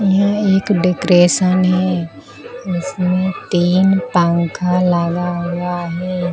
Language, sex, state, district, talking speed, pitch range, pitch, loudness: Hindi, female, Bihar, Katihar, 95 wpm, 175-190 Hz, 180 Hz, -16 LUFS